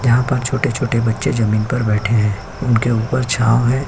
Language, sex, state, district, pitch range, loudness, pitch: Hindi, male, Uttar Pradesh, Hamirpur, 115-130 Hz, -17 LUFS, 120 Hz